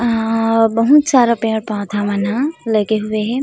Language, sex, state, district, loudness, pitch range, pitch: Chhattisgarhi, female, Chhattisgarh, Rajnandgaon, -15 LUFS, 215-235 Hz, 225 Hz